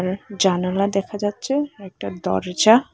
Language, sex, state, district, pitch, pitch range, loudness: Bengali, female, Tripura, West Tripura, 195 Hz, 180-205 Hz, -21 LUFS